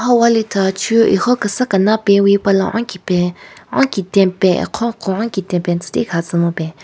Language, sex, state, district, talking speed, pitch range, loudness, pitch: Rengma, female, Nagaland, Kohima, 160 wpm, 185-225 Hz, -15 LUFS, 195 Hz